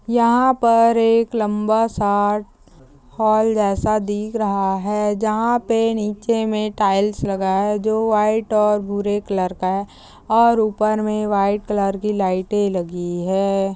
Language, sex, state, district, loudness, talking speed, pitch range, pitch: Hindi, female, Chhattisgarh, Kabirdham, -19 LUFS, 145 wpm, 195-220 Hz, 210 Hz